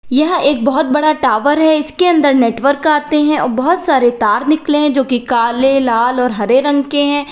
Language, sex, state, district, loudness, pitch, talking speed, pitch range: Hindi, female, Uttar Pradesh, Lalitpur, -13 LUFS, 285 Hz, 215 wpm, 250-300 Hz